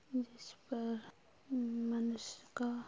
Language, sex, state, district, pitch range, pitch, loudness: Hindi, female, Uttar Pradesh, Budaun, 230-245 Hz, 235 Hz, -41 LUFS